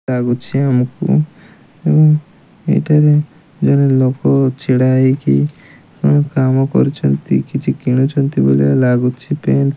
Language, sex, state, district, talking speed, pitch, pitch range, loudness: Odia, male, Odisha, Malkangiri, 100 wpm, 135 Hz, 125-150 Hz, -14 LUFS